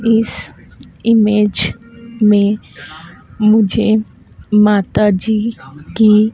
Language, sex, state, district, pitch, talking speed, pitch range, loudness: Hindi, female, Madhya Pradesh, Dhar, 215 Hz, 55 wpm, 205-220 Hz, -14 LUFS